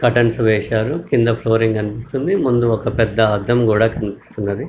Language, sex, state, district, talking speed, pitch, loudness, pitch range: Telugu, male, Telangana, Karimnagar, 140 wpm, 115 Hz, -17 LUFS, 110-120 Hz